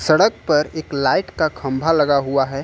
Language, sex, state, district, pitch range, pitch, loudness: Hindi, male, Uttar Pradesh, Lucknow, 135-155 Hz, 145 Hz, -18 LUFS